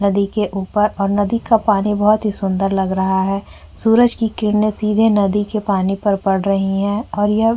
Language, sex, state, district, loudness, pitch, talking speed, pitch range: Hindi, female, Uttar Pradesh, Jyotiba Phule Nagar, -17 LUFS, 205 Hz, 215 wpm, 195-215 Hz